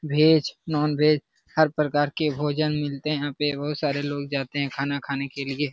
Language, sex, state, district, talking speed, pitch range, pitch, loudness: Hindi, male, Bihar, Lakhisarai, 210 wpm, 140-150 Hz, 145 Hz, -25 LUFS